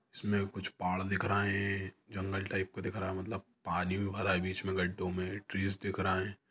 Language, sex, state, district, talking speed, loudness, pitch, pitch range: Hindi, male, Chhattisgarh, Sukma, 220 wpm, -35 LUFS, 95 Hz, 95-100 Hz